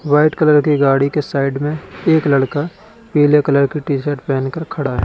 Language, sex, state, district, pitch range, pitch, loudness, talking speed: Hindi, male, Uttar Pradesh, Lalitpur, 140-150 Hz, 145 Hz, -16 LUFS, 215 wpm